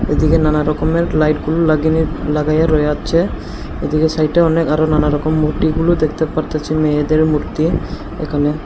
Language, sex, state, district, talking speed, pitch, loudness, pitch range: Bengali, male, Tripura, Unakoti, 140 wpm, 155 Hz, -16 LUFS, 150-160 Hz